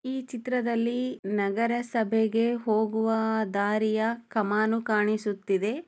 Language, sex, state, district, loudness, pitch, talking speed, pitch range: Kannada, female, Karnataka, Chamarajanagar, -27 LUFS, 220 Hz, 60 wpm, 215-235 Hz